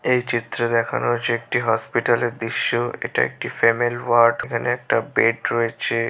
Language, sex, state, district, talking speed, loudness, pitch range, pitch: Bengali, male, West Bengal, Malda, 160 wpm, -21 LUFS, 115-120 Hz, 115 Hz